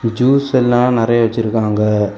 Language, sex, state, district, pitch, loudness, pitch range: Tamil, male, Tamil Nadu, Kanyakumari, 115 Hz, -14 LUFS, 110-125 Hz